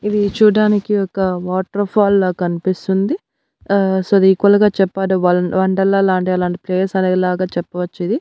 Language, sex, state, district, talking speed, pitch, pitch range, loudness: Telugu, female, Andhra Pradesh, Annamaya, 160 wpm, 190 Hz, 185-200 Hz, -16 LUFS